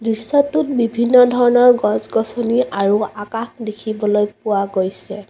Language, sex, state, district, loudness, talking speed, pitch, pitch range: Assamese, female, Assam, Kamrup Metropolitan, -17 LUFS, 100 wpm, 225 Hz, 210-245 Hz